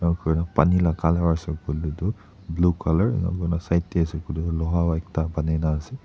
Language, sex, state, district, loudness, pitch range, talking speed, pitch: Nagamese, male, Nagaland, Dimapur, -24 LUFS, 80-85 Hz, 230 wpm, 85 Hz